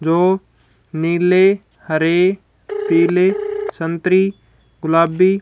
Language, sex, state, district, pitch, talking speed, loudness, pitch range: Hindi, female, Haryana, Jhajjar, 180 Hz, 65 wpm, -16 LUFS, 165-195 Hz